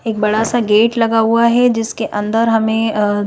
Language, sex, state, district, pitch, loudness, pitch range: Hindi, female, Madhya Pradesh, Bhopal, 225 Hz, -14 LUFS, 215-230 Hz